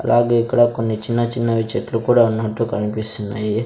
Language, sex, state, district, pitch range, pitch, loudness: Telugu, male, Andhra Pradesh, Sri Satya Sai, 110-120 Hz, 115 Hz, -19 LUFS